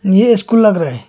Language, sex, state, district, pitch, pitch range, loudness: Hindi, male, Arunachal Pradesh, Longding, 210 Hz, 175-225 Hz, -11 LUFS